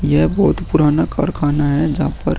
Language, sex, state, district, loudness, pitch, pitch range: Hindi, female, Bihar, Vaishali, -16 LUFS, 150 Hz, 145-155 Hz